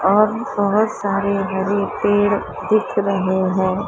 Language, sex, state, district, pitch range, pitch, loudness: Hindi, female, Maharashtra, Mumbai Suburban, 195-205 Hz, 200 Hz, -19 LUFS